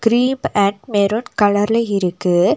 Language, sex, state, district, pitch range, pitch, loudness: Tamil, female, Tamil Nadu, Nilgiris, 200-230 Hz, 205 Hz, -17 LUFS